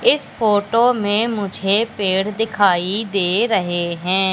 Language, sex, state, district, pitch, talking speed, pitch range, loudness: Hindi, female, Madhya Pradesh, Katni, 205 Hz, 125 wpm, 190-225 Hz, -18 LUFS